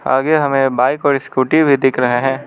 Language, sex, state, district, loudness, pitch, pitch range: Hindi, male, Arunachal Pradesh, Lower Dibang Valley, -14 LUFS, 135 Hz, 130-145 Hz